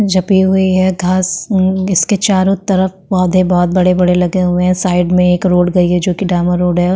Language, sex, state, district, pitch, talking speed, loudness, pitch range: Hindi, female, Maharashtra, Chandrapur, 185 Hz, 225 wpm, -12 LUFS, 180-190 Hz